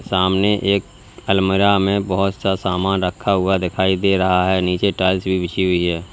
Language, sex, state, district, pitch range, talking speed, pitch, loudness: Hindi, male, Uttar Pradesh, Lalitpur, 95-100 Hz, 185 wpm, 95 Hz, -18 LUFS